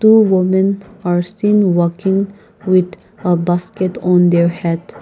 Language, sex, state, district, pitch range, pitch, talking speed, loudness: English, female, Nagaland, Kohima, 175-200 Hz, 185 Hz, 130 wpm, -15 LUFS